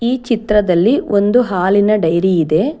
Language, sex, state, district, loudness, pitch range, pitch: Kannada, female, Karnataka, Bangalore, -14 LUFS, 180-235 Hz, 205 Hz